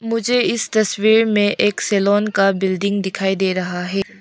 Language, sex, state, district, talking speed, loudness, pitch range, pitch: Hindi, female, Arunachal Pradesh, Lower Dibang Valley, 170 wpm, -17 LUFS, 195-215 Hz, 200 Hz